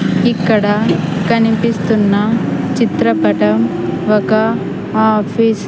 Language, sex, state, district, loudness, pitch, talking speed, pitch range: Telugu, female, Andhra Pradesh, Sri Satya Sai, -14 LUFS, 215 Hz, 65 wpm, 200-225 Hz